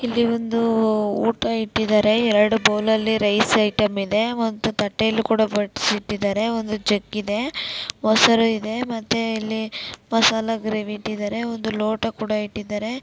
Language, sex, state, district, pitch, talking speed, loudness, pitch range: Kannada, female, Karnataka, Dakshina Kannada, 220 Hz, 135 wpm, -21 LUFS, 210-225 Hz